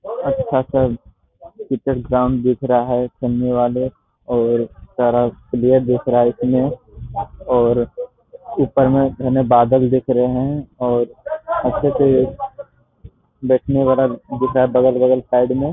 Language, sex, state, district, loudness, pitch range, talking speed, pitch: Hindi, male, Bihar, Jamui, -17 LUFS, 125-135 Hz, 135 wpm, 130 Hz